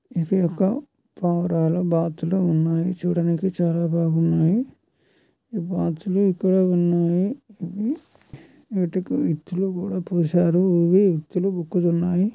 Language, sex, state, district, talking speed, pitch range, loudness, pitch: Telugu, male, Andhra Pradesh, Chittoor, 85 wpm, 170-190 Hz, -22 LUFS, 180 Hz